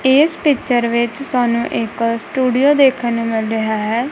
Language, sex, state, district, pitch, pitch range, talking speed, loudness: Punjabi, female, Punjab, Kapurthala, 240 Hz, 230-270 Hz, 160 wpm, -16 LUFS